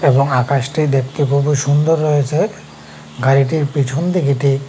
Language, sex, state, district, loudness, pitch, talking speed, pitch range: Bengali, male, Tripura, West Tripura, -16 LUFS, 140 Hz, 100 wpm, 135-150 Hz